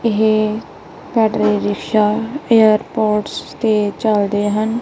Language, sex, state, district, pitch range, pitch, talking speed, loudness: Punjabi, female, Punjab, Kapurthala, 210-220 Hz, 215 Hz, 85 wpm, -16 LUFS